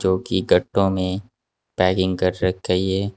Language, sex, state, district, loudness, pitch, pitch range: Hindi, male, Uttar Pradesh, Saharanpur, -21 LUFS, 95 Hz, 95-100 Hz